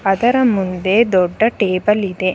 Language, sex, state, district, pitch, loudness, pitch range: Kannada, female, Karnataka, Bangalore, 195 Hz, -15 LUFS, 185-225 Hz